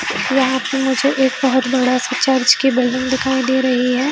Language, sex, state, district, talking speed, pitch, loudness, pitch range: Hindi, female, Chhattisgarh, Bilaspur, 190 wpm, 260 Hz, -16 LUFS, 255-265 Hz